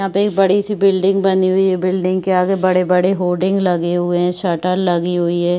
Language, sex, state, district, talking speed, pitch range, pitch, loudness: Hindi, female, Uttar Pradesh, Varanasi, 225 wpm, 180-195 Hz, 185 Hz, -16 LUFS